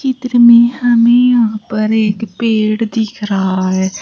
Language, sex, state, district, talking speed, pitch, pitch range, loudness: Hindi, female, Uttar Pradesh, Shamli, 150 wpm, 225 Hz, 215-240 Hz, -12 LUFS